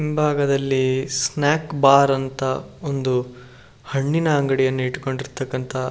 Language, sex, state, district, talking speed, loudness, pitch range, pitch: Kannada, male, Karnataka, Shimoga, 90 wpm, -21 LUFS, 130-140 Hz, 135 Hz